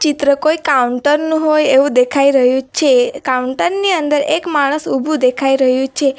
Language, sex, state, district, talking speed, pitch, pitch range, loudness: Gujarati, female, Gujarat, Valsad, 175 wpm, 280 Hz, 260-305 Hz, -14 LUFS